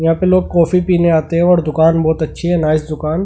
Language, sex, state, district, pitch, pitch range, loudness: Hindi, male, Delhi, New Delhi, 165 Hz, 160-175 Hz, -14 LUFS